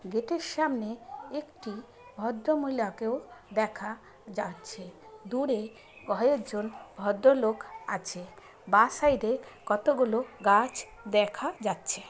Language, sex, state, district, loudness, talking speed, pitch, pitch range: Bengali, female, West Bengal, Kolkata, -29 LUFS, 90 wpm, 230 Hz, 210-275 Hz